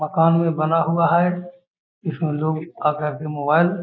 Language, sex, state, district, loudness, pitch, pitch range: Magahi, male, Bihar, Gaya, -20 LUFS, 165 Hz, 155-170 Hz